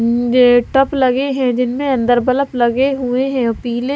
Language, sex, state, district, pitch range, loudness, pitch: Hindi, female, Himachal Pradesh, Shimla, 245-270 Hz, -15 LUFS, 250 Hz